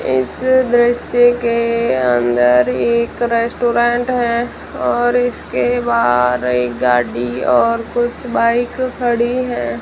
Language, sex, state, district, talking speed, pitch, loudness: Hindi, female, Rajasthan, Jaisalmer, 105 wpm, 235 Hz, -15 LUFS